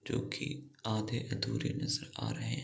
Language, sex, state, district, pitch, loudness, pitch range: Hindi, male, Bihar, East Champaran, 135 Hz, -37 LUFS, 125-145 Hz